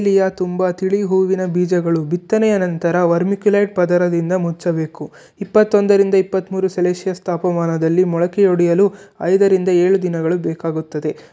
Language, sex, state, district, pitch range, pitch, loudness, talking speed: Kannada, male, Karnataka, Shimoga, 170-195 Hz, 180 Hz, -17 LUFS, 105 wpm